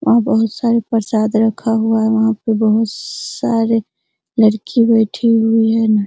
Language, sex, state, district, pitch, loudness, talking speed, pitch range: Hindi, female, Bihar, Araria, 225 Hz, -15 LUFS, 150 wpm, 220-230 Hz